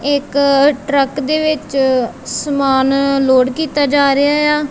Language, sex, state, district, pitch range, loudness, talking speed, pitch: Punjabi, female, Punjab, Kapurthala, 275-290 Hz, -14 LUFS, 140 wpm, 280 Hz